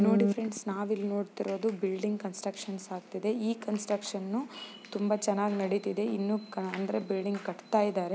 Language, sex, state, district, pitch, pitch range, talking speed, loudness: Kannada, female, Karnataka, Chamarajanagar, 205 Hz, 195-215 Hz, 110 wpm, -32 LUFS